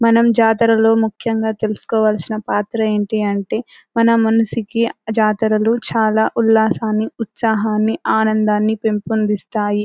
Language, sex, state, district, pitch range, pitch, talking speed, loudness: Telugu, female, Telangana, Karimnagar, 215-225 Hz, 220 Hz, 90 wpm, -17 LUFS